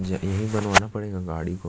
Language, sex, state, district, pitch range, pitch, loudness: Hindi, male, Chhattisgarh, Jashpur, 90-105 Hz, 95 Hz, -24 LUFS